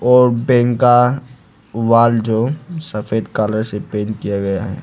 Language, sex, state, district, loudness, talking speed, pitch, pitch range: Hindi, male, Arunachal Pradesh, Lower Dibang Valley, -16 LUFS, 150 wpm, 115 Hz, 105-125 Hz